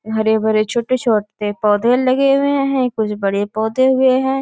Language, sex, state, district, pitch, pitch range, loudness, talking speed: Hindi, female, Bihar, Bhagalpur, 230 Hz, 215-260 Hz, -16 LUFS, 150 wpm